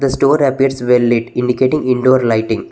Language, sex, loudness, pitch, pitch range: English, male, -14 LUFS, 125 Hz, 120-135 Hz